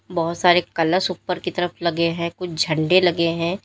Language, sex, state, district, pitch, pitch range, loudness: Hindi, female, Uttar Pradesh, Lalitpur, 170 Hz, 165-180 Hz, -20 LUFS